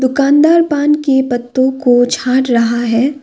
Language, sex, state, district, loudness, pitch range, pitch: Hindi, female, Assam, Kamrup Metropolitan, -12 LUFS, 245-280 Hz, 260 Hz